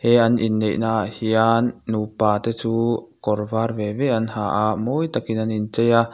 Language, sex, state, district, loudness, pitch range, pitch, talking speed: Mizo, male, Mizoram, Aizawl, -21 LUFS, 110-115 Hz, 110 Hz, 205 wpm